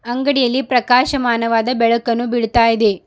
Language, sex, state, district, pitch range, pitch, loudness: Kannada, female, Karnataka, Bidar, 230-250 Hz, 240 Hz, -15 LUFS